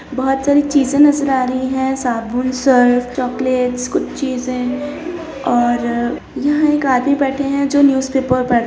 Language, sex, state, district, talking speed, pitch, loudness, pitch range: Hindi, female, Bihar, Lakhisarai, 150 wpm, 265 Hz, -16 LUFS, 250-280 Hz